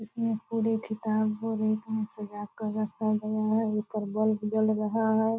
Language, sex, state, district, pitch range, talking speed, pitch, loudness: Hindi, female, Bihar, Purnia, 215-220 Hz, 180 wpm, 215 Hz, -29 LUFS